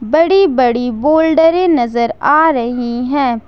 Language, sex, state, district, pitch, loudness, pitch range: Hindi, female, Jharkhand, Ranchi, 280 Hz, -12 LUFS, 240-320 Hz